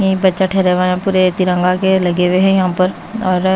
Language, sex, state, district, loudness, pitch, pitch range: Hindi, female, Bihar, Katihar, -14 LUFS, 185 Hz, 180-190 Hz